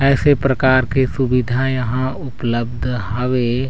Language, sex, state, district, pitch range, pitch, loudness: Chhattisgarhi, male, Chhattisgarh, Raigarh, 125-130 Hz, 130 Hz, -18 LUFS